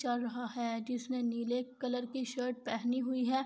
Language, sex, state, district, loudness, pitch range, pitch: Urdu, female, Andhra Pradesh, Anantapur, -36 LUFS, 240-255 Hz, 245 Hz